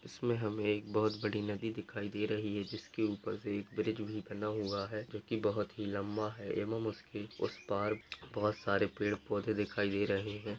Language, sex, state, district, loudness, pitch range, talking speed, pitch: Hindi, male, Bihar, Lakhisarai, -37 LUFS, 105-110 Hz, 210 wpm, 105 Hz